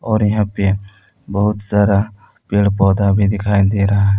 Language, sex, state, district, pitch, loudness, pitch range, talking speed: Hindi, male, Jharkhand, Palamu, 100 Hz, -16 LUFS, 100-105 Hz, 170 wpm